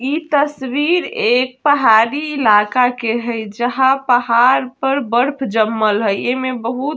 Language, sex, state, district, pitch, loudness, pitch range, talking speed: Bajjika, female, Bihar, Vaishali, 255 Hz, -15 LUFS, 235-280 Hz, 145 wpm